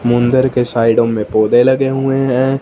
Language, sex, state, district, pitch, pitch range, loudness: Hindi, male, Punjab, Fazilka, 125 Hz, 120-130 Hz, -13 LUFS